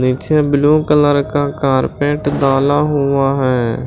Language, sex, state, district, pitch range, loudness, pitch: Hindi, male, Maharashtra, Washim, 135-145 Hz, -14 LUFS, 145 Hz